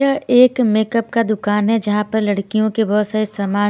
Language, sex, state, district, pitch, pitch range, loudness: Hindi, female, Himachal Pradesh, Shimla, 215 Hz, 210-230 Hz, -16 LUFS